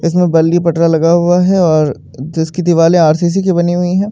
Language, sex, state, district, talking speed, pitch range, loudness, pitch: Hindi, male, Maharashtra, Mumbai Suburban, 220 wpm, 160-180 Hz, -12 LUFS, 170 Hz